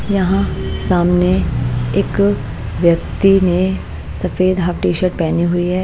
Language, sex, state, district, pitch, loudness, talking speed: Hindi, female, Bihar, Patna, 175 Hz, -16 LUFS, 125 wpm